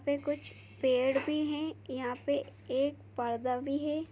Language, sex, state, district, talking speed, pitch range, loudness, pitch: Hindi, female, Chhattisgarh, Jashpur, 160 wpm, 255-295 Hz, -33 LUFS, 280 Hz